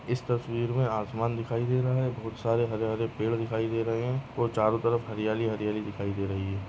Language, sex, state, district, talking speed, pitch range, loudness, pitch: Hindi, male, Maharashtra, Nagpur, 235 wpm, 110-120 Hz, -29 LUFS, 115 Hz